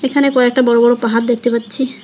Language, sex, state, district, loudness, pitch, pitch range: Bengali, female, West Bengal, Alipurduar, -13 LUFS, 245 Hz, 235-260 Hz